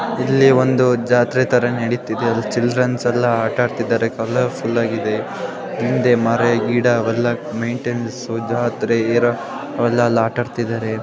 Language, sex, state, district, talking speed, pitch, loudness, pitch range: Kannada, female, Karnataka, Gulbarga, 110 wpm, 120 Hz, -18 LUFS, 115-125 Hz